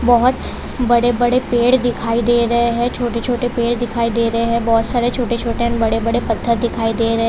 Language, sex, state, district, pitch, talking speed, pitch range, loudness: Hindi, female, Gujarat, Valsad, 235 Hz, 215 wpm, 230-240 Hz, -17 LUFS